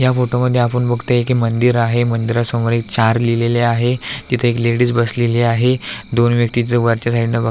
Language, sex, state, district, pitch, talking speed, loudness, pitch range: Marathi, male, Maharashtra, Aurangabad, 120 Hz, 190 wpm, -16 LUFS, 115-120 Hz